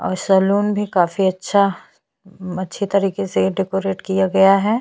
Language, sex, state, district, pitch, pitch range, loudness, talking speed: Hindi, female, Chhattisgarh, Bastar, 190 Hz, 185-200 Hz, -18 LUFS, 150 wpm